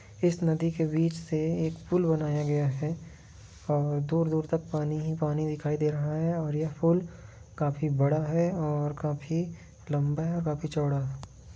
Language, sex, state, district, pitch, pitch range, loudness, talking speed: Hindi, male, Jharkhand, Jamtara, 155 Hz, 145-160 Hz, -29 LUFS, 185 wpm